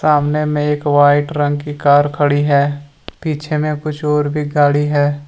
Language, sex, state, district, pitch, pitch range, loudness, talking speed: Hindi, male, Jharkhand, Deoghar, 145 Hz, 145-150 Hz, -15 LUFS, 180 wpm